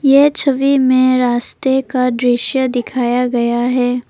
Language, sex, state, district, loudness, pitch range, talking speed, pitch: Hindi, female, Assam, Kamrup Metropolitan, -14 LUFS, 245-265 Hz, 130 wpm, 255 Hz